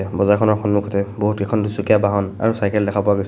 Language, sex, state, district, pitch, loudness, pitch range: Assamese, male, Assam, Sonitpur, 100 Hz, -18 LUFS, 100-105 Hz